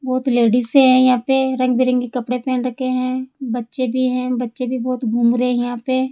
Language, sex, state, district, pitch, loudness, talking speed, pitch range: Hindi, female, Rajasthan, Jaipur, 255 Hz, -18 LUFS, 215 wpm, 250-255 Hz